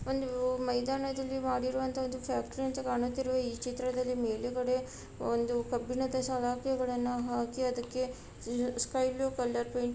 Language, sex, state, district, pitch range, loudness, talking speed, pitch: Kannada, female, Karnataka, Raichur, 245-260 Hz, -34 LUFS, 115 wpm, 255 Hz